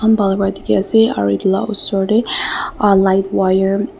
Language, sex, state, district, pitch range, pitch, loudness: Nagamese, female, Nagaland, Dimapur, 190-215 Hz, 195 Hz, -15 LUFS